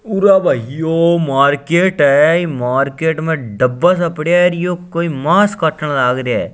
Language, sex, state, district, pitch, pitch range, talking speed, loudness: Hindi, male, Rajasthan, Churu, 160 Hz, 140-175 Hz, 155 wpm, -14 LUFS